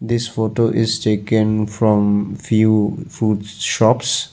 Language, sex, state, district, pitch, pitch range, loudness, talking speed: English, male, Assam, Sonitpur, 110 Hz, 105-115 Hz, -17 LUFS, 110 wpm